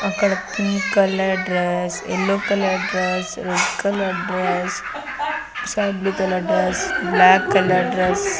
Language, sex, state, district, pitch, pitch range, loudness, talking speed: Telugu, female, Andhra Pradesh, Sri Satya Sai, 190 Hz, 185-200 Hz, -20 LUFS, 130 wpm